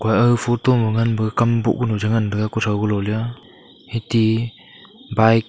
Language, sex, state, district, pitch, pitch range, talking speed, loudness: Wancho, male, Arunachal Pradesh, Longding, 115 Hz, 110-115 Hz, 175 wpm, -19 LUFS